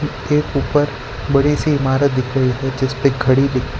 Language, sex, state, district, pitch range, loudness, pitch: Hindi, male, Gujarat, Valsad, 130-145 Hz, -17 LUFS, 135 Hz